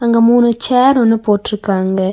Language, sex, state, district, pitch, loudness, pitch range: Tamil, female, Tamil Nadu, Nilgiris, 225 Hz, -13 LUFS, 205-240 Hz